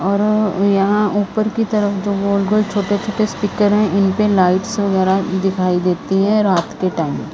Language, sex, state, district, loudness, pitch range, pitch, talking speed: Hindi, female, Punjab, Kapurthala, -16 LUFS, 190-210 Hz, 200 Hz, 165 wpm